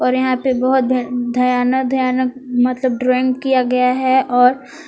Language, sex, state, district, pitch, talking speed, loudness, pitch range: Hindi, female, Jharkhand, Palamu, 255 Hz, 125 wpm, -16 LUFS, 250-260 Hz